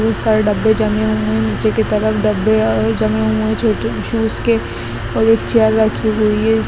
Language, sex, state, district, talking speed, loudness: Hindi, female, Bihar, Gaya, 195 wpm, -15 LUFS